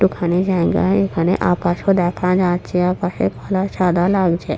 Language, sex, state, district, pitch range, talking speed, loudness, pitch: Bengali, female, West Bengal, Purulia, 175-190 Hz, 130 wpm, -18 LUFS, 180 Hz